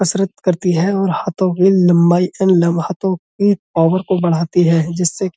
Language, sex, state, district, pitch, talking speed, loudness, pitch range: Hindi, male, Uttar Pradesh, Budaun, 180 Hz, 190 wpm, -15 LUFS, 170-190 Hz